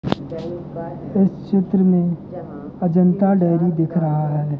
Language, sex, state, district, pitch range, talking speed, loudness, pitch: Hindi, male, Madhya Pradesh, Katni, 165-180 Hz, 105 wpm, -19 LUFS, 175 Hz